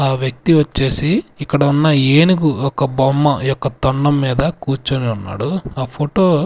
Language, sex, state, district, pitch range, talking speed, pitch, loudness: Telugu, male, Andhra Pradesh, Sri Satya Sai, 135-150 Hz, 150 wpm, 140 Hz, -16 LUFS